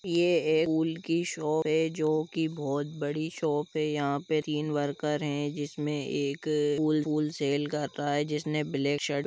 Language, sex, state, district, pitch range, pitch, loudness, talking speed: Hindi, male, Jharkhand, Jamtara, 145-155 Hz, 150 Hz, -29 LUFS, 180 wpm